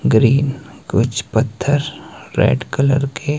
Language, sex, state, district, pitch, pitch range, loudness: Hindi, male, Himachal Pradesh, Shimla, 135 Hz, 115-145 Hz, -17 LUFS